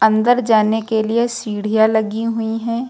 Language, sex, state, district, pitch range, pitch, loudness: Hindi, female, Uttar Pradesh, Lucknow, 220-230 Hz, 220 Hz, -17 LUFS